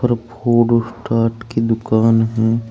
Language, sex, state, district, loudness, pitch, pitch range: Hindi, male, Uttar Pradesh, Saharanpur, -17 LUFS, 115 Hz, 115-120 Hz